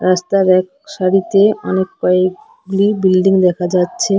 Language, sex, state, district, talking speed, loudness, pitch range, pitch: Bengali, female, West Bengal, Cooch Behar, 115 wpm, -14 LUFS, 185-195 Hz, 185 Hz